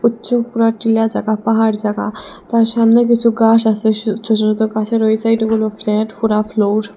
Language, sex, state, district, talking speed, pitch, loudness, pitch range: Bengali, female, Assam, Hailakandi, 180 wpm, 220 Hz, -15 LUFS, 215-230 Hz